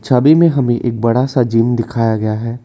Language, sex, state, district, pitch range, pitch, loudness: Hindi, male, Assam, Kamrup Metropolitan, 115-125 Hz, 120 Hz, -14 LUFS